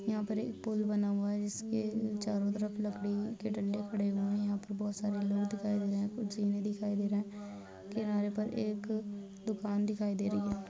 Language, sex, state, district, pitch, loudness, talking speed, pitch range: Hindi, female, Uttar Pradesh, Deoria, 205 Hz, -35 LUFS, 195 wpm, 205-210 Hz